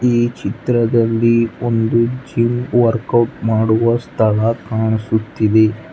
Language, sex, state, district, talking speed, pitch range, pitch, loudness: Kannada, male, Karnataka, Bangalore, 80 wpm, 110-120 Hz, 115 Hz, -16 LUFS